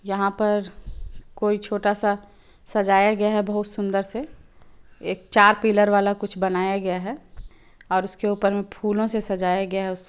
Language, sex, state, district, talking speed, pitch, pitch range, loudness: Hindi, female, Chhattisgarh, Bilaspur, 180 wpm, 205 Hz, 195-210 Hz, -22 LUFS